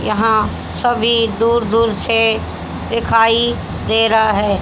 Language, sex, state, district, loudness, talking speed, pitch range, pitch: Hindi, female, Haryana, Charkhi Dadri, -15 LUFS, 115 wpm, 220-230 Hz, 225 Hz